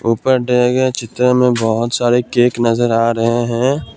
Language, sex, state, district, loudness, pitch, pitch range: Hindi, male, Assam, Kamrup Metropolitan, -15 LUFS, 120 Hz, 115-125 Hz